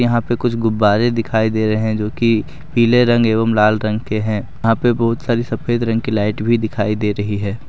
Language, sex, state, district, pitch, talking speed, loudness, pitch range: Hindi, male, Jharkhand, Deoghar, 115 Hz, 235 wpm, -17 LUFS, 110-120 Hz